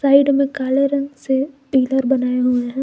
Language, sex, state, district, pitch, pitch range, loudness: Hindi, female, Jharkhand, Garhwa, 270 Hz, 260-275 Hz, -18 LUFS